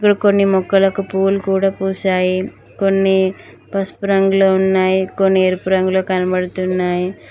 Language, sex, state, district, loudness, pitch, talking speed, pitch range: Telugu, female, Telangana, Mahabubabad, -16 LUFS, 190 Hz, 105 wpm, 185-195 Hz